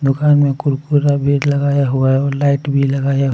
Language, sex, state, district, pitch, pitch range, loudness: Hindi, male, Jharkhand, Palamu, 140 Hz, 135-145 Hz, -15 LUFS